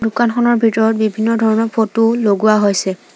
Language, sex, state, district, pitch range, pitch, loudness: Assamese, female, Assam, Sonitpur, 215-230 Hz, 220 Hz, -14 LUFS